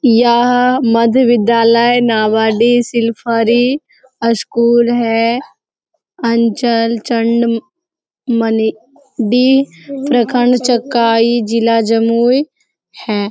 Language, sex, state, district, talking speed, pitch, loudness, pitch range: Hindi, female, Bihar, Jamui, 70 wpm, 235 Hz, -13 LUFS, 230-245 Hz